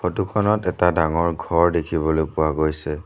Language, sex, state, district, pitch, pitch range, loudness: Assamese, male, Assam, Sonitpur, 85 Hz, 80-90 Hz, -20 LUFS